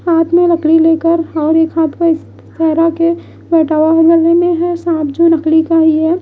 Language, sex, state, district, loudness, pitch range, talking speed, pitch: Hindi, female, Odisha, Malkangiri, -12 LUFS, 320-335 Hz, 185 wpm, 330 Hz